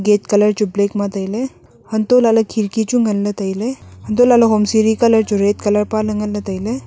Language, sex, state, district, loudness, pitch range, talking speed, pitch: Wancho, female, Arunachal Pradesh, Longding, -16 LUFS, 205-225 Hz, 210 wpm, 210 Hz